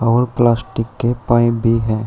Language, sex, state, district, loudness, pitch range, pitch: Hindi, male, Uttar Pradesh, Shamli, -16 LUFS, 115-120 Hz, 120 Hz